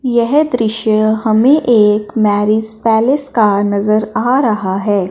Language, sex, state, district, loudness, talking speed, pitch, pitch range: Hindi, male, Punjab, Fazilka, -13 LUFS, 130 wpm, 220 Hz, 210-240 Hz